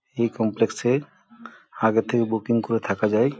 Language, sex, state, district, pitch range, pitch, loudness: Bengali, male, West Bengal, Jhargram, 110-130 Hz, 115 Hz, -23 LUFS